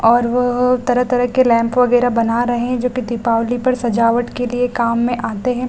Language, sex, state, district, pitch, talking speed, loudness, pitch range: Hindi, female, Bihar, Gaya, 245 Hz, 210 wpm, -16 LUFS, 235-250 Hz